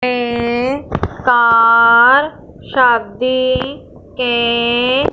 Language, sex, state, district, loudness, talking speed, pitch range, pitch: Hindi, female, Punjab, Fazilka, -13 LUFS, 45 wpm, 235-255 Hz, 245 Hz